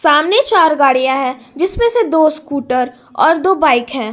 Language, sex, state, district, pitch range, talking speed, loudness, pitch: Hindi, female, Jharkhand, Palamu, 255-340 Hz, 175 wpm, -13 LUFS, 295 Hz